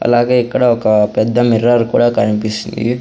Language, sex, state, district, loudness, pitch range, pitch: Telugu, male, Andhra Pradesh, Sri Satya Sai, -13 LUFS, 110-120 Hz, 120 Hz